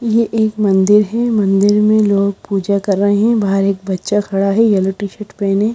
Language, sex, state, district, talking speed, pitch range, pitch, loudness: Hindi, female, Bihar, Katihar, 210 wpm, 195-215 Hz, 205 Hz, -14 LUFS